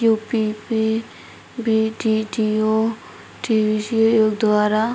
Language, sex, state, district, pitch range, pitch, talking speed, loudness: Hindi, female, Uttar Pradesh, Ghazipur, 215-225 Hz, 220 Hz, 60 wpm, -20 LUFS